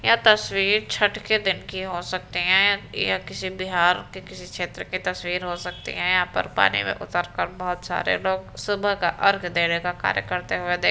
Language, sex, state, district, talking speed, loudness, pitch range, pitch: Hindi, female, Uttar Pradesh, Varanasi, 210 wpm, -23 LUFS, 175-200 Hz, 185 Hz